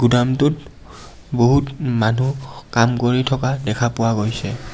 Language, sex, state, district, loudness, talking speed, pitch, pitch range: Assamese, male, Assam, Kamrup Metropolitan, -19 LUFS, 115 wpm, 125 Hz, 115-135 Hz